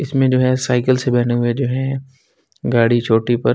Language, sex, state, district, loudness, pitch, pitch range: Hindi, male, Delhi, New Delhi, -17 LUFS, 130 Hz, 120-130 Hz